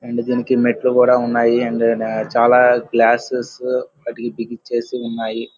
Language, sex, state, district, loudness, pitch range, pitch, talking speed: Telugu, male, Andhra Pradesh, Guntur, -17 LUFS, 115-125 Hz, 120 Hz, 120 wpm